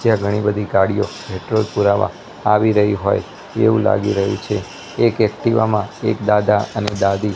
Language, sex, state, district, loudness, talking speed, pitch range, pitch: Gujarati, male, Gujarat, Gandhinagar, -18 LUFS, 165 wpm, 100-110 Hz, 105 Hz